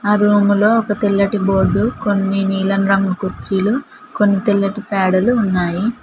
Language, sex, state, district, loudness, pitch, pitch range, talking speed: Telugu, female, Telangana, Mahabubabad, -16 LUFS, 200 Hz, 195-210 Hz, 140 wpm